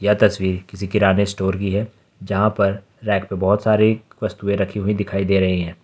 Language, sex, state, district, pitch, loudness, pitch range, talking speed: Hindi, male, Jharkhand, Ranchi, 100 Hz, -20 LUFS, 95-105 Hz, 205 wpm